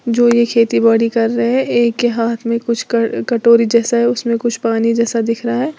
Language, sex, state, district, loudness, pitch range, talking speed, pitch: Hindi, female, Uttar Pradesh, Lalitpur, -14 LUFS, 230-235 Hz, 240 wpm, 235 Hz